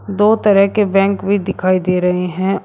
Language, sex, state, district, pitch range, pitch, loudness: Hindi, male, Uttar Pradesh, Shamli, 185-200 Hz, 195 Hz, -15 LUFS